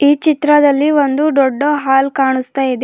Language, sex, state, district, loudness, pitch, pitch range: Kannada, female, Karnataka, Bidar, -13 LUFS, 280 Hz, 270-295 Hz